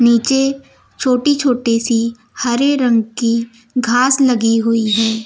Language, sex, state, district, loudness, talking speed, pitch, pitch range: Hindi, female, Uttar Pradesh, Lucknow, -15 LUFS, 125 wpm, 240 Hz, 230-260 Hz